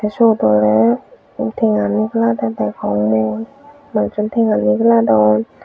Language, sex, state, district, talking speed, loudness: Chakma, female, Tripura, Unakoti, 95 wpm, -15 LUFS